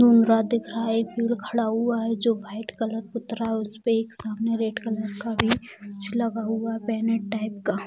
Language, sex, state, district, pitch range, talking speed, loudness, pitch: Hindi, female, Bihar, Bhagalpur, 220-230 Hz, 230 wpm, -26 LUFS, 225 Hz